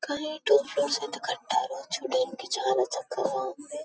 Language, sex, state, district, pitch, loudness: Telugu, female, Telangana, Karimnagar, 290 Hz, -28 LUFS